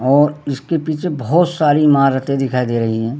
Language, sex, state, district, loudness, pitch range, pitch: Hindi, male, Uttarakhand, Tehri Garhwal, -16 LUFS, 130-150 Hz, 140 Hz